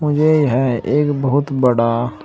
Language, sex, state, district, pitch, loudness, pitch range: Hindi, male, Uttar Pradesh, Shamli, 135 Hz, -16 LUFS, 120-145 Hz